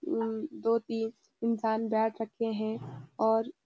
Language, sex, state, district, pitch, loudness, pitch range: Hindi, female, Uttarakhand, Uttarkashi, 225 Hz, -32 LUFS, 220-230 Hz